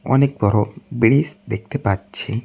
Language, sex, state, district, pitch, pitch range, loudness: Bengali, male, West Bengal, Cooch Behar, 115 Hz, 105-140 Hz, -19 LUFS